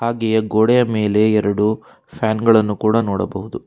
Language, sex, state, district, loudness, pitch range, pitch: Kannada, male, Karnataka, Bangalore, -17 LUFS, 105-115 Hz, 110 Hz